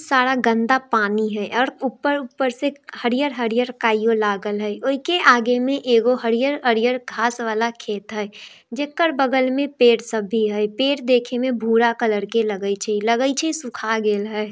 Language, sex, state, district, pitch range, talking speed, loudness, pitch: Hindi, female, Bihar, Darbhanga, 220-265 Hz, 195 wpm, -20 LUFS, 235 Hz